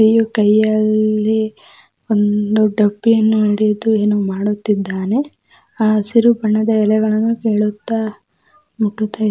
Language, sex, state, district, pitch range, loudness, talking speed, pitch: Kannada, female, Karnataka, Dakshina Kannada, 210-220 Hz, -16 LUFS, 85 wpm, 215 Hz